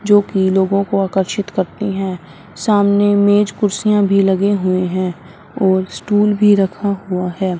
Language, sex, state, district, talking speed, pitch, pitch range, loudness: Hindi, female, Punjab, Fazilka, 150 wpm, 195 Hz, 185-205 Hz, -16 LUFS